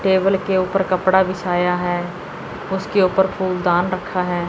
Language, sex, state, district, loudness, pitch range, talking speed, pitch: Hindi, female, Chandigarh, Chandigarh, -19 LUFS, 180-190 Hz, 145 wpm, 185 Hz